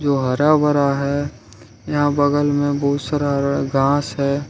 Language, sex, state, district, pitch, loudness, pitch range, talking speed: Hindi, male, Jharkhand, Ranchi, 140 Hz, -18 LUFS, 140-145 Hz, 145 wpm